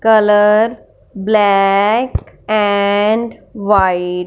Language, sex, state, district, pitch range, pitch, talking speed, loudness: Hindi, female, Punjab, Fazilka, 195-215 Hz, 210 Hz, 70 wpm, -13 LUFS